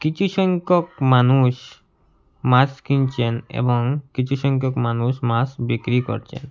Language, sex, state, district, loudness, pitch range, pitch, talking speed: Bengali, male, Assam, Hailakandi, -20 LUFS, 120-140 Hz, 130 Hz, 110 wpm